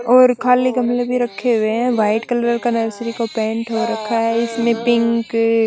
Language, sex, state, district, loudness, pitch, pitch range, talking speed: Hindi, female, Chandigarh, Chandigarh, -17 LUFS, 230 Hz, 225-240 Hz, 180 wpm